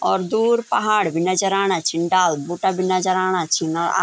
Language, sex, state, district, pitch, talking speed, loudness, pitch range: Garhwali, female, Uttarakhand, Tehri Garhwal, 185 Hz, 195 wpm, -19 LUFS, 170-195 Hz